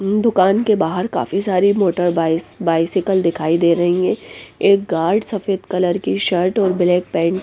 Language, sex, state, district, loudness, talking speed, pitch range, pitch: Hindi, female, Bihar, West Champaran, -17 LUFS, 180 wpm, 175-200 Hz, 185 Hz